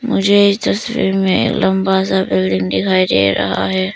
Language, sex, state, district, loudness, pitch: Hindi, female, Arunachal Pradesh, Papum Pare, -14 LUFS, 145 Hz